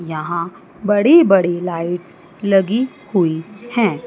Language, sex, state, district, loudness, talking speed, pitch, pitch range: Hindi, female, Chandigarh, Chandigarh, -17 LUFS, 105 wpm, 190 Hz, 170-210 Hz